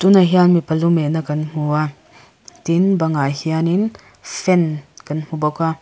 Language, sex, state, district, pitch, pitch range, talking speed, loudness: Mizo, female, Mizoram, Aizawl, 160 Hz, 150-175 Hz, 165 wpm, -18 LUFS